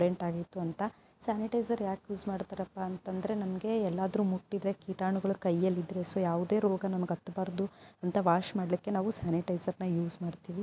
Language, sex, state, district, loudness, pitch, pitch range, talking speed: Kannada, female, Karnataka, Dharwad, -33 LUFS, 190 Hz, 180-200 Hz, 150 wpm